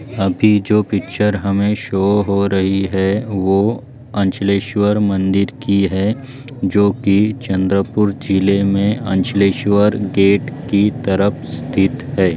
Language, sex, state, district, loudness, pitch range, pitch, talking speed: Hindi, male, Maharashtra, Chandrapur, -16 LUFS, 100-105 Hz, 100 Hz, 110 wpm